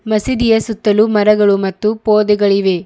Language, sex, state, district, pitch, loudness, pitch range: Kannada, female, Karnataka, Bidar, 210 Hz, -13 LUFS, 205-220 Hz